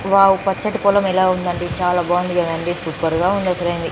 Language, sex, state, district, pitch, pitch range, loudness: Telugu, female, Telangana, Nalgonda, 180 Hz, 175-195 Hz, -18 LUFS